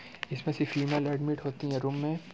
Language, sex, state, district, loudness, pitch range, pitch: Hindi, male, Bihar, Muzaffarpur, -32 LUFS, 140-150 Hz, 145 Hz